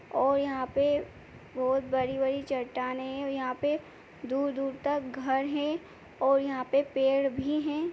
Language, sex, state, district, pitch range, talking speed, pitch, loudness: Hindi, female, Chhattisgarh, Jashpur, 265-285 Hz, 150 wpm, 270 Hz, -30 LUFS